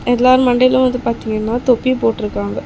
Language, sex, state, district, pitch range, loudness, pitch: Tamil, female, Tamil Nadu, Chennai, 225-255 Hz, -15 LUFS, 245 Hz